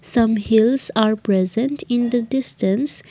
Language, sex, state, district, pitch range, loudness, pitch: English, female, Assam, Kamrup Metropolitan, 215-245 Hz, -19 LUFS, 230 Hz